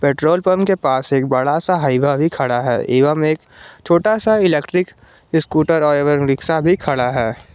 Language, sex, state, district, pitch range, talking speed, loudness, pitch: Hindi, male, Jharkhand, Garhwa, 135-170 Hz, 175 wpm, -16 LUFS, 150 Hz